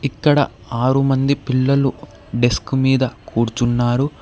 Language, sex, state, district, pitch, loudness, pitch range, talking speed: Telugu, male, Telangana, Hyderabad, 130 Hz, -18 LUFS, 120-140 Hz, 100 wpm